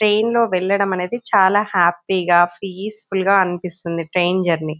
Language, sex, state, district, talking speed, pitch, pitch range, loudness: Telugu, female, Telangana, Nalgonda, 160 wpm, 185 Hz, 175-200 Hz, -18 LUFS